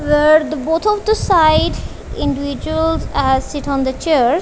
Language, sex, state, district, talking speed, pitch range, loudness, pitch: English, female, Punjab, Kapurthala, 165 wpm, 280-325 Hz, -16 LUFS, 300 Hz